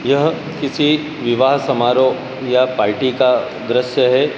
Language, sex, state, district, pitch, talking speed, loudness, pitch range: Hindi, male, Madhya Pradesh, Dhar, 130 Hz, 125 wpm, -16 LUFS, 125-140 Hz